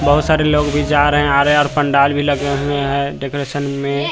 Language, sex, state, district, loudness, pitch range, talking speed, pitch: Hindi, male, Bihar, Katihar, -15 LUFS, 140-145 Hz, 260 wpm, 145 Hz